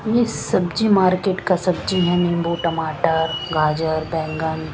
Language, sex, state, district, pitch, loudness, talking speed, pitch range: Hindi, female, Chandigarh, Chandigarh, 170 Hz, -20 LUFS, 125 wpm, 160-185 Hz